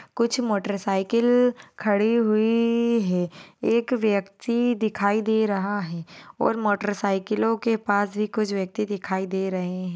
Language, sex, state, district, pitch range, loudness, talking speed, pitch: Hindi, female, Maharashtra, Sindhudurg, 195-230 Hz, -24 LUFS, 145 wpm, 210 Hz